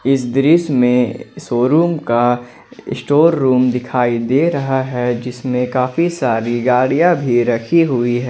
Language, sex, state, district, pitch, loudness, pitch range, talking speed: Hindi, male, Jharkhand, Ranchi, 125 Hz, -15 LUFS, 120-135 Hz, 145 wpm